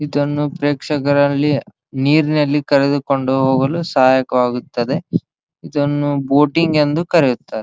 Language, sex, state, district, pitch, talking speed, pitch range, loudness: Kannada, male, Karnataka, Dharwad, 145 Hz, 80 wpm, 135-150 Hz, -16 LUFS